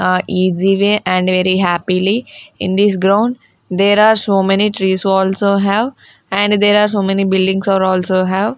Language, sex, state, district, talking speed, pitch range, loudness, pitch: English, female, Punjab, Fazilka, 160 wpm, 185-205 Hz, -14 LUFS, 195 Hz